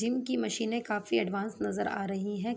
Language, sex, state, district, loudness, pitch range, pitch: Hindi, female, Jharkhand, Sahebganj, -32 LUFS, 195-230 Hz, 210 Hz